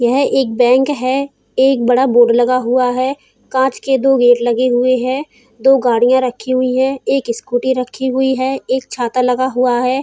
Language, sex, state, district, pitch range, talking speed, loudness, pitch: Hindi, female, Uttar Pradesh, Hamirpur, 245-265 Hz, 190 wpm, -14 LUFS, 255 Hz